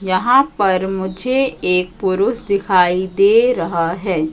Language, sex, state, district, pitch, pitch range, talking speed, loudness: Hindi, female, Madhya Pradesh, Katni, 190 Hz, 180-220 Hz, 125 wpm, -16 LUFS